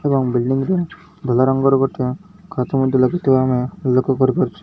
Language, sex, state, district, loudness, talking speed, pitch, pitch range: Odia, male, Odisha, Malkangiri, -18 LUFS, 155 wpm, 135 Hz, 130-150 Hz